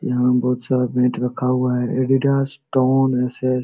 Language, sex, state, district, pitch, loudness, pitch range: Hindi, male, Jharkhand, Sahebganj, 125 Hz, -19 LUFS, 125-130 Hz